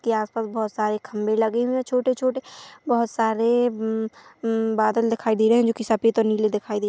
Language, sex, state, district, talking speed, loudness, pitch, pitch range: Hindi, female, Chhattisgarh, Korba, 235 wpm, -23 LUFS, 225 Hz, 220-240 Hz